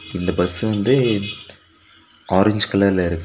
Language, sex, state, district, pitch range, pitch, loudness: Tamil, male, Tamil Nadu, Nilgiris, 90-105 Hz, 100 Hz, -19 LUFS